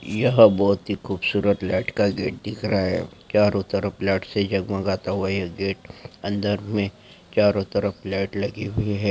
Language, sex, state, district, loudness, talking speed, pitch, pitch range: Hindi, male, Rajasthan, Nagaur, -23 LUFS, 170 wpm, 100 Hz, 95-105 Hz